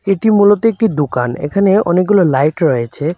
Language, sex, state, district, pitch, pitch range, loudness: Bengali, male, Tripura, West Tripura, 180 Hz, 145-205 Hz, -13 LUFS